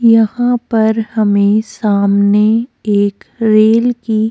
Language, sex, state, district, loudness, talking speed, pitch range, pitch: Hindi, female, Goa, North and South Goa, -13 LUFS, 110 wpm, 210-230 Hz, 220 Hz